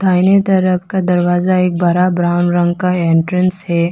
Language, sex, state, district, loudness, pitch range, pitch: Hindi, female, Arunachal Pradesh, Lower Dibang Valley, -14 LUFS, 175-185 Hz, 180 Hz